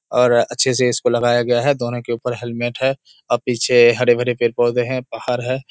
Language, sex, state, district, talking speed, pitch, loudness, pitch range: Hindi, male, Bihar, Kishanganj, 210 wpm, 120 Hz, -18 LUFS, 120-125 Hz